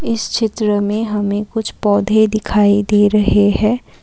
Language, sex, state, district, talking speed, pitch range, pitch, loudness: Hindi, female, Assam, Kamrup Metropolitan, 150 wpm, 205-220 Hz, 210 Hz, -15 LUFS